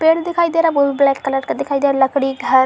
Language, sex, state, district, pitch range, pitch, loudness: Hindi, female, Uttar Pradesh, Muzaffarnagar, 270-320 Hz, 280 Hz, -16 LUFS